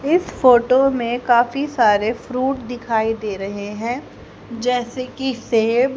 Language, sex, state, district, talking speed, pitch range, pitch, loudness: Hindi, female, Haryana, Charkhi Dadri, 130 wpm, 225-260 Hz, 245 Hz, -19 LUFS